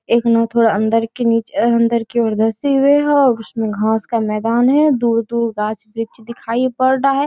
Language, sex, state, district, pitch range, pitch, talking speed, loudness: Hindi, female, Bihar, Bhagalpur, 225-255 Hz, 230 Hz, 205 wpm, -16 LUFS